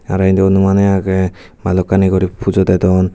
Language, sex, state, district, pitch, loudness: Chakma, male, Tripura, Dhalai, 95 Hz, -13 LUFS